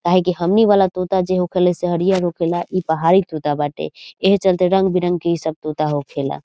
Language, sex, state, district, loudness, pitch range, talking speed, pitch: Bhojpuri, female, Bihar, Saran, -18 LUFS, 160-185 Hz, 205 wpm, 175 Hz